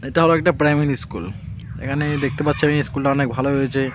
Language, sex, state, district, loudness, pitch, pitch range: Bengali, male, West Bengal, Alipurduar, -19 LUFS, 140 Hz, 135-150 Hz